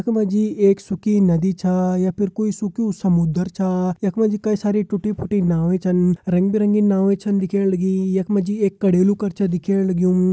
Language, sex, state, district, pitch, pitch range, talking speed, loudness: Hindi, male, Uttarakhand, Uttarkashi, 195 Hz, 185-205 Hz, 180 wpm, -19 LUFS